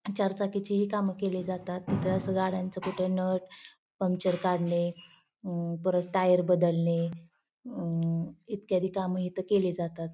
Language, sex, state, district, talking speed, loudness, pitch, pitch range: Marathi, female, Maharashtra, Pune, 140 wpm, -30 LUFS, 185 Hz, 175-190 Hz